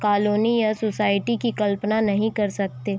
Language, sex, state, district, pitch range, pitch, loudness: Hindi, female, Chhattisgarh, Raigarh, 200-220 Hz, 210 Hz, -22 LUFS